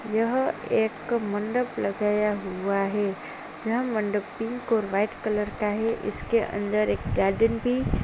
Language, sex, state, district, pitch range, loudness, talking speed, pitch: Hindi, female, Uttar Pradesh, Jalaun, 205-230 Hz, -26 LUFS, 150 wpm, 210 Hz